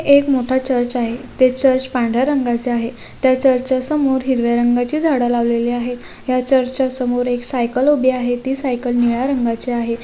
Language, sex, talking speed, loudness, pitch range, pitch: Marathi, female, 185 wpm, -17 LUFS, 240-260 Hz, 250 Hz